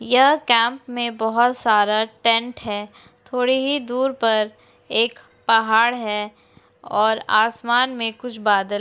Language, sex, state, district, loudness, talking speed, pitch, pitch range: Hindi, female, Uttarakhand, Tehri Garhwal, -19 LUFS, 135 wpm, 230 Hz, 215-245 Hz